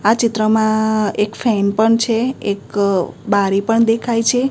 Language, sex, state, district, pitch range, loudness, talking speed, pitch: Gujarati, female, Gujarat, Gandhinagar, 205-230 Hz, -16 LUFS, 145 wpm, 220 Hz